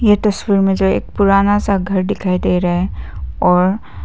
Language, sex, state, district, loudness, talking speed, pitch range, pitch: Hindi, female, Arunachal Pradesh, Papum Pare, -15 LUFS, 190 wpm, 180-200 Hz, 195 Hz